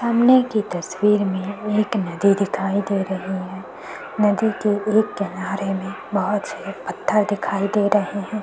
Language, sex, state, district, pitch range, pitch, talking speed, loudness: Hindi, female, Chhattisgarh, Korba, 195-215 Hz, 200 Hz, 165 wpm, -21 LUFS